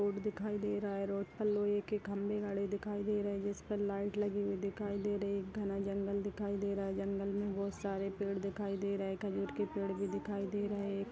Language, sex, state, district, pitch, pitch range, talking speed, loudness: Kumaoni, female, Uttarakhand, Uttarkashi, 200 Hz, 200-205 Hz, 265 wpm, -38 LUFS